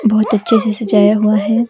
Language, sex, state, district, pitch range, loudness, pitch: Hindi, female, Himachal Pradesh, Shimla, 210-220 Hz, -13 LUFS, 215 Hz